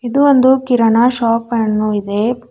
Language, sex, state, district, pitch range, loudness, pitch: Kannada, female, Karnataka, Bidar, 225-255 Hz, -13 LUFS, 235 Hz